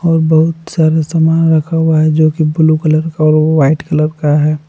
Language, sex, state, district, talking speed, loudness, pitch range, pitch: Hindi, male, Jharkhand, Palamu, 215 wpm, -11 LUFS, 155-160 Hz, 155 Hz